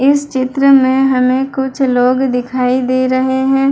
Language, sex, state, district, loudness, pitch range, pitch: Hindi, female, Bihar, Madhepura, -13 LUFS, 255-270 Hz, 260 Hz